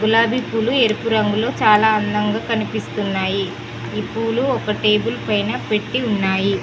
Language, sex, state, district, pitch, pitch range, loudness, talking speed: Telugu, female, Telangana, Mahabubabad, 215 Hz, 205-230 Hz, -19 LUFS, 125 wpm